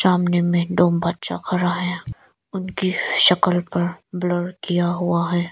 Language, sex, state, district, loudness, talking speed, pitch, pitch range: Hindi, female, Arunachal Pradesh, Lower Dibang Valley, -20 LUFS, 140 wpm, 175 Hz, 175-180 Hz